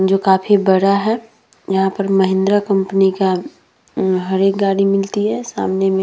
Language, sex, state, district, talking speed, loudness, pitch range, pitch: Hindi, female, Bihar, Vaishali, 180 wpm, -16 LUFS, 190-200 Hz, 195 Hz